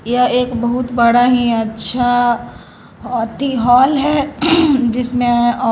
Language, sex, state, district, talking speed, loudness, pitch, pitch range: Hindi, female, Bihar, Patna, 105 wpm, -14 LUFS, 245 Hz, 240-255 Hz